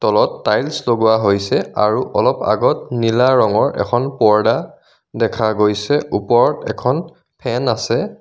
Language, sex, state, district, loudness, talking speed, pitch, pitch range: Assamese, male, Assam, Kamrup Metropolitan, -16 LUFS, 125 wpm, 115 Hz, 105-125 Hz